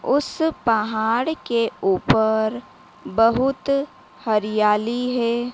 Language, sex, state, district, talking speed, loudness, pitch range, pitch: Hindi, female, Madhya Pradesh, Dhar, 75 wpm, -21 LUFS, 220-260 Hz, 235 Hz